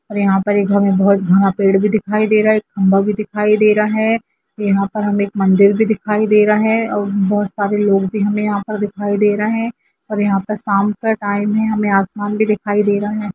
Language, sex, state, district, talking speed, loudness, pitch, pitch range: Hindi, female, Jharkhand, Jamtara, 245 wpm, -15 LUFS, 205 Hz, 200-215 Hz